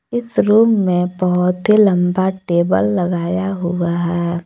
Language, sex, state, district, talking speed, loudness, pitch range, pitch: Hindi, female, Jharkhand, Palamu, 135 wpm, -16 LUFS, 175-195 Hz, 180 Hz